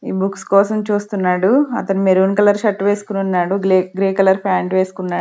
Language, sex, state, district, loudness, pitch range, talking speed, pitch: Telugu, female, Andhra Pradesh, Sri Satya Sai, -16 LUFS, 185-205 Hz, 160 wpm, 195 Hz